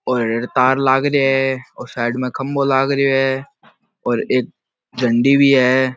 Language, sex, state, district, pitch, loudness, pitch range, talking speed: Marwari, male, Rajasthan, Nagaur, 130 Hz, -17 LUFS, 125-135 Hz, 170 wpm